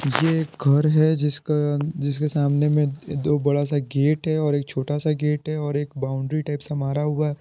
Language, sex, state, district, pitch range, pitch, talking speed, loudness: Hindi, male, Bihar, Patna, 145-150 Hz, 145 Hz, 210 wpm, -22 LUFS